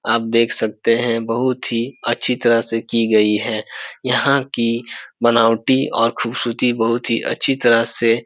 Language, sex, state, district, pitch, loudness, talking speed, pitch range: Hindi, male, Bihar, Supaul, 115 Hz, -17 LUFS, 160 wpm, 115-120 Hz